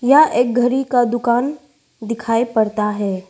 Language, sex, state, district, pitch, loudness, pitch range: Hindi, female, Arunachal Pradesh, Lower Dibang Valley, 240 Hz, -17 LUFS, 220-245 Hz